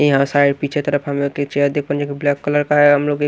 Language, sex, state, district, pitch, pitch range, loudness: Hindi, male, Maharashtra, Washim, 145 Hz, 140-145 Hz, -17 LUFS